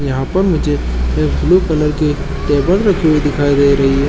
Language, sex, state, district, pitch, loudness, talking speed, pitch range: Chhattisgarhi, male, Chhattisgarh, Jashpur, 145 Hz, -14 LUFS, 205 wpm, 135-160 Hz